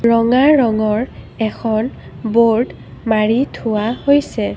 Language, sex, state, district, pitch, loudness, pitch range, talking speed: Assamese, female, Assam, Kamrup Metropolitan, 230 Hz, -16 LUFS, 220-250 Hz, 90 wpm